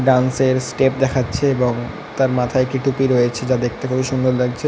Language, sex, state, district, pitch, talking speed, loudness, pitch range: Bengali, male, West Bengal, North 24 Parganas, 130 Hz, 190 wpm, -18 LUFS, 125-135 Hz